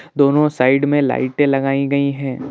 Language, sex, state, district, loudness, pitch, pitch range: Hindi, male, Bihar, Jahanabad, -16 LUFS, 140 Hz, 135-145 Hz